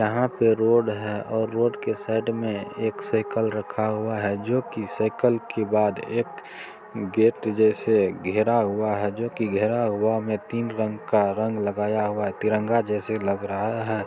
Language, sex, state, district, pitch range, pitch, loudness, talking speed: Maithili, male, Bihar, Supaul, 105-115 Hz, 110 Hz, -24 LUFS, 185 wpm